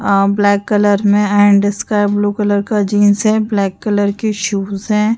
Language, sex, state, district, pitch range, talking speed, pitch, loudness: Hindi, female, Uttar Pradesh, Jyotiba Phule Nagar, 200-210 Hz, 185 wpm, 205 Hz, -14 LUFS